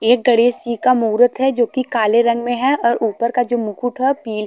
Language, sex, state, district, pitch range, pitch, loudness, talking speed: Hindi, female, Haryana, Charkhi Dadri, 230-250 Hz, 240 Hz, -16 LUFS, 240 wpm